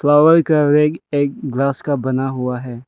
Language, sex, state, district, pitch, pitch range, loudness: Hindi, male, Arunachal Pradesh, Lower Dibang Valley, 140 Hz, 130-150 Hz, -16 LUFS